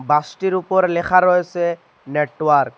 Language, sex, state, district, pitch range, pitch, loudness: Bengali, male, Assam, Hailakandi, 150-180 Hz, 170 Hz, -18 LUFS